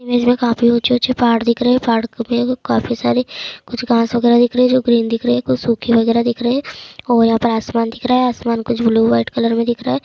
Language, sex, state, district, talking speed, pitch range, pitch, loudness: Hindi, female, Uttar Pradesh, Muzaffarnagar, 265 wpm, 230-245 Hz, 235 Hz, -15 LUFS